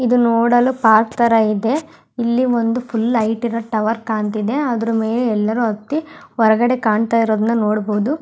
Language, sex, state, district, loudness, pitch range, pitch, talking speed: Kannada, female, Karnataka, Mysore, -17 LUFS, 220-245 Hz, 230 Hz, 155 wpm